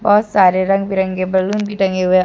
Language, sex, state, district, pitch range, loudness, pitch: Hindi, female, Jharkhand, Deoghar, 185-205 Hz, -15 LUFS, 190 Hz